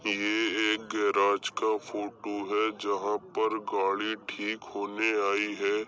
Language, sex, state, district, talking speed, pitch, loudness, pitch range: Hindi, male, Uttar Pradesh, Jyotiba Phule Nagar, 130 wpm, 105 Hz, -29 LUFS, 100-110 Hz